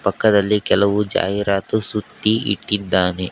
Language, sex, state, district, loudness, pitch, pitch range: Kannada, male, Karnataka, Koppal, -18 LUFS, 105 Hz, 100-105 Hz